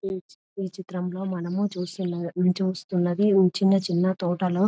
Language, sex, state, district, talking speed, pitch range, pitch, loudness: Telugu, female, Telangana, Nalgonda, 115 wpm, 180-195 Hz, 185 Hz, -25 LUFS